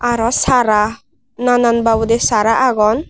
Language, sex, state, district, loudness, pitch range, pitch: Chakma, female, Tripura, West Tripura, -14 LUFS, 225-245 Hz, 230 Hz